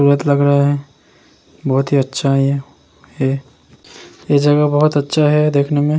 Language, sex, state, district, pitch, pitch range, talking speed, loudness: Hindi, male, Bihar, Vaishali, 140 Hz, 140-145 Hz, 180 wpm, -15 LUFS